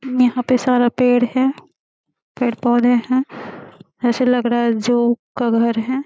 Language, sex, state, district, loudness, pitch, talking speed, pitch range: Hindi, female, Bihar, Jamui, -17 LUFS, 245 Hz, 160 wpm, 235-255 Hz